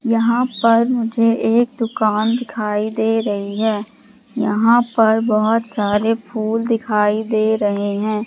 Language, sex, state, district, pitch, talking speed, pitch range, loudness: Hindi, female, Madhya Pradesh, Katni, 225 Hz, 130 wpm, 215-230 Hz, -17 LUFS